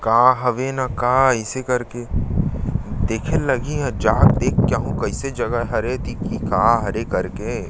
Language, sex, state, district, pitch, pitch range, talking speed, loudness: Chhattisgarhi, male, Chhattisgarh, Sarguja, 125 Hz, 110-130 Hz, 155 wpm, -20 LUFS